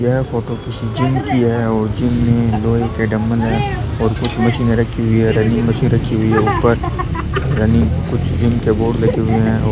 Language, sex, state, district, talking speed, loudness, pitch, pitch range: Rajasthani, male, Rajasthan, Churu, 210 wpm, -16 LUFS, 115 Hz, 110-120 Hz